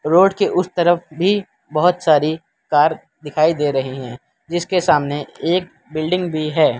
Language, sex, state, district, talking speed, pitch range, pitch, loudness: Hindi, male, Gujarat, Valsad, 160 wpm, 150-180 Hz, 160 Hz, -18 LUFS